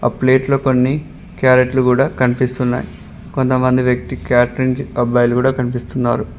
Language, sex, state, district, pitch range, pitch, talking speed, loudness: Telugu, male, Telangana, Mahabubabad, 125-130 Hz, 130 Hz, 105 wpm, -16 LUFS